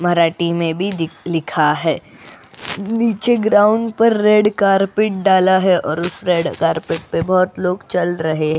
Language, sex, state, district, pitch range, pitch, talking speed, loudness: Hindi, female, Goa, North and South Goa, 165-205 Hz, 180 Hz, 160 wpm, -16 LUFS